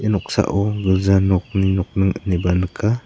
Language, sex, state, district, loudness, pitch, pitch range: Garo, male, Meghalaya, South Garo Hills, -19 LUFS, 95 Hz, 95-105 Hz